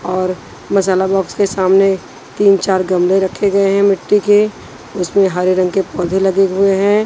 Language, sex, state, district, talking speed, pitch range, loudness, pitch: Hindi, female, Punjab, Pathankot, 180 wpm, 185-200 Hz, -14 LUFS, 195 Hz